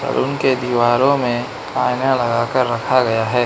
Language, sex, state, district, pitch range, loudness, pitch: Hindi, male, Manipur, Imphal West, 120-130 Hz, -17 LUFS, 125 Hz